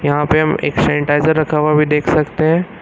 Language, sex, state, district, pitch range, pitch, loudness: Hindi, male, Uttar Pradesh, Lucknow, 150-155 Hz, 150 Hz, -14 LUFS